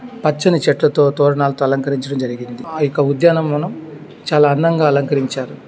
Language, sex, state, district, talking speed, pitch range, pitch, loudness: Telugu, male, Andhra Pradesh, Chittoor, 105 wpm, 140-155 Hz, 145 Hz, -16 LUFS